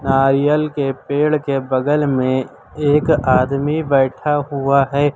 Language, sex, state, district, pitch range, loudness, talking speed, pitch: Hindi, male, Uttar Pradesh, Lucknow, 135-150 Hz, -17 LUFS, 130 wpm, 140 Hz